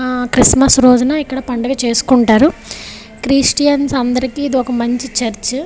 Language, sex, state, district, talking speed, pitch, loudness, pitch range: Telugu, female, Andhra Pradesh, Visakhapatnam, 125 wpm, 255 Hz, -13 LUFS, 245-270 Hz